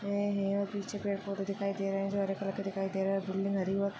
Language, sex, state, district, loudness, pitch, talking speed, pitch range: Hindi, female, Maharashtra, Chandrapur, -34 LUFS, 195 Hz, 330 wpm, 195-200 Hz